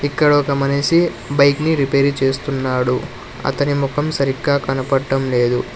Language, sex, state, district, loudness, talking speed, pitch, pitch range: Telugu, male, Telangana, Hyderabad, -17 LUFS, 125 wpm, 140 Hz, 135-145 Hz